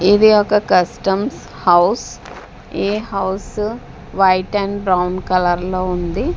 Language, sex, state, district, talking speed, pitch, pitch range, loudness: Telugu, female, Andhra Pradesh, Sri Satya Sai, 115 wpm, 190 Hz, 180-205 Hz, -17 LUFS